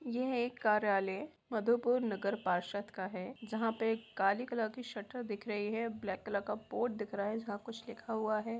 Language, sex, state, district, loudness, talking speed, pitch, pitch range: Hindi, female, Jharkhand, Jamtara, -37 LUFS, 200 wpm, 220 Hz, 205-235 Hz